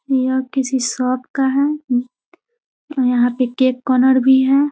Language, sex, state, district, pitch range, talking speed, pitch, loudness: Hindi, female, Bihar, Muzaffarpur, 255-275 Hz, 165 wpm, 260 Hz, -17 LUFS